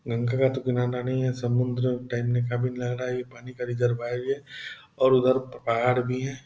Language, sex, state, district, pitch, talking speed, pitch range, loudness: Hindi, male, Bihar, Purnia, 125 Hz, 195 wpm, 120-130 Hz, -26 LUFS